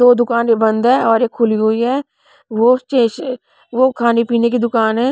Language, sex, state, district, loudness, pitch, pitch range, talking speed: Hindi, female, Punjab, Pathankot, -15 LUFS, 235 Hz, 230-255 Hz, 200 wpm